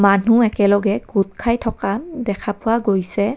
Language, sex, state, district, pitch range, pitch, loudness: Assamese, female, Assam, Kamrup Metropolitan, 200-230 Hz, 205 Hz, -18 LUFS